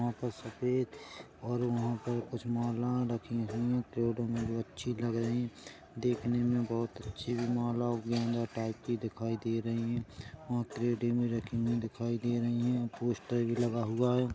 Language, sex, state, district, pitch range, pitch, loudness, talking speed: Hindi, male, Chhattisgarh, Korba, 115-120 Hz, 120 Hz, -34 LUFS, 190 wpm